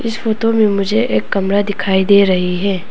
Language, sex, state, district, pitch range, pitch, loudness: Hindi, female, Arunachal Pradesh, Papum Pare, 195-220 Hz, 200 Hz, -14 LUFS